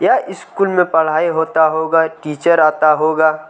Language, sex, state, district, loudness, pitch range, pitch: Hindi, male, Chhattisgarh, Kabirdham, -14 LUFS, 155-165 Hz, 160 Hz